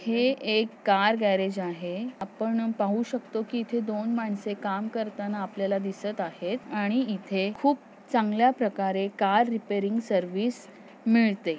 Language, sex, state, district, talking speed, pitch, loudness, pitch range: Marathi, female, Maharashtra, Pune, 135 wpm, 210 Hz, -27 LUFS, 195-230 Hz